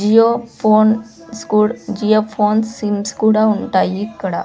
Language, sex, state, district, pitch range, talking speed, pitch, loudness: Telugu, female, Andhra Pradesh, Sri Satya Sai, 210-225 Hz, 120 wpm, 215 Hz, -16 LUFS